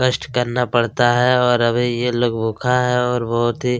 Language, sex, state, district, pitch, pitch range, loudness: Hindi, male, Chhattisgarh, Kabirdham, 125 Hz, 120-125 Hz, -18 LUFS